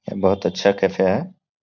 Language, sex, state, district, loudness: Hindi, male, Bihar, Supaul, -20 LUFS